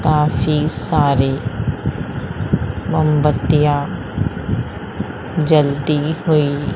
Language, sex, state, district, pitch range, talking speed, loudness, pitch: Hindi, female, Madhya Pradesh, Umaria, 120-150 Hz, 45 wpm, -18 LUFS, 145 Hz